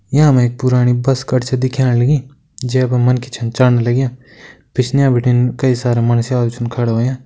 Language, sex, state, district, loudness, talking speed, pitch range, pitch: Kumaoni, male, Uttarakhand, Uttarkashi, -15 LUFS, 180 wpm, 120-130 Hz, 125 Hz